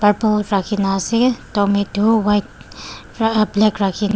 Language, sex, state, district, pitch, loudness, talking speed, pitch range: Nagamese, female, Nagaland, Dimapur, 210 Hz, -17 LUFS, 115 wpm, 200-220 Hz